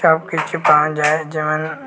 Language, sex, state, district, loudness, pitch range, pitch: Bengali, male, Tripura, West Tripura, -17 LUFS, 155-160 Hz, 155 Hz